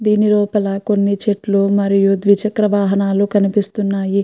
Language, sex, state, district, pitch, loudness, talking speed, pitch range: Telugu, female, Andhra Pradesh, Krishna, 200 Hz, -15 LUFS, 115 wpm, 200-210 Hz